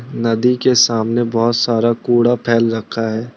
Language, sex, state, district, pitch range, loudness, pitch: Hindi, male, Arunachal Pradesh, Lower Dibang Valley, 115-120 Hz, -15 LUFS, 115 Hz